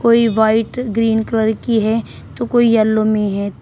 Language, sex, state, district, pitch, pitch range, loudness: Hindi, female, Uttar Pradesh, Shamli, 220 Hz, 220-230 Hz, -16 LUFS